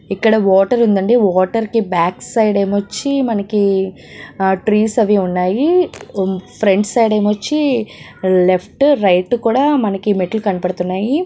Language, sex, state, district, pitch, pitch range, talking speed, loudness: Telugu, female, Telangana, Nalgonda, 205 Hz, 190-230 Hz, 115 wpm, -15 LUFS